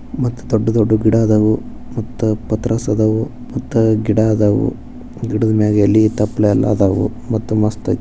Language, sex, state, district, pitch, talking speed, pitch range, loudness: Kannada, male, Karnataka, Bijapur, 110 Hz, 125 wpm, 105-115 Hz, -16 LUFS